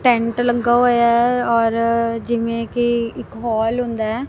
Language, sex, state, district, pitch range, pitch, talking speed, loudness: Punjabi, female, Punjab, Kapurthala, 230-240 Hz, 235 Hz, 140 wpm, -18 LUFS